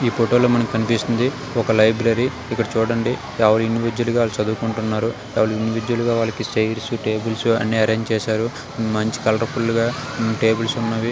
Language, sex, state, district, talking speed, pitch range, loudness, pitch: Telugu, male, Telangana, Karimnagar, 140 wpm, 110-115 Hz, -20 LUFS, 115 Hz